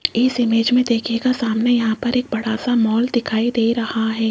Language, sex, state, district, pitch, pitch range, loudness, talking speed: Hindi, female, Rajasthan, Jaipur, 230 Hz, 225-245 Hz, -18 LUFS, 210 wpm